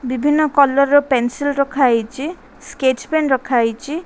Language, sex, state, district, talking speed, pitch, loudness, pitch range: Odia, female, Odisha, Khordha, 120 wpm, 275 Hz, -16 LUFS, 255-290 Hz